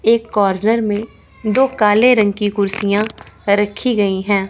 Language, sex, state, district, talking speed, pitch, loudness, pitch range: Hindi, female, Chandigarh, Chandigarh, 145 wpm, 210 Hz, -16 LUFS, 200-225 Hz